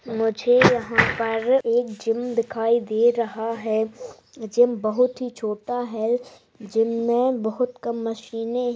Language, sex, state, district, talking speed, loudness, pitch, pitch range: Hindi, female, Bihar, Bhagalpur, 130 wpm, -22 LUFS, 230 Hz, 225-245 Hz